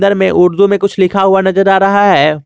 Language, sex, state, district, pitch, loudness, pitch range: Hindi, male, Jharkhand, Garhwa, 195 Hz, -10 LUFS, 190-200 Hz